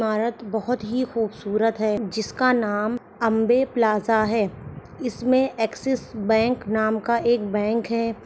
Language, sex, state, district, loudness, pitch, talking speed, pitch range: Hindi, male, Chhattisgarh, Bilaspur, -23 LUFS, 225 Hz, 140 wpm, 215-240 Hz